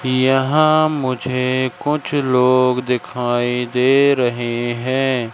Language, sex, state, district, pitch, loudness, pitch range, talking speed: Hindi, male, Madhya Pradesh, Katni, 130 Hz, -17 LUFS, 125-135 Hz, 90 wpm